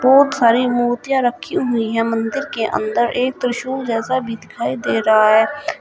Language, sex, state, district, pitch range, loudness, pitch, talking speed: Hindi, female, Uttar Pradesh, Shamli, 230-260 Hz, -17 LUFS, 245 Hz, 175 wpm